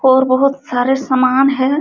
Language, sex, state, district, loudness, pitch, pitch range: Hindi, female, Uttar Pradesh, Jalaun, -14 LUFS, 265 Hz, 260-275 Hz